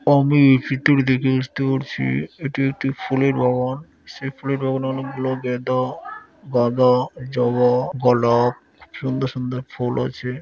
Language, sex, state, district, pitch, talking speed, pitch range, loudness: Bengali, male, West Bengal, Malda, 130 Hz, 130 wpm, 125-135 Hz, -20 LUFS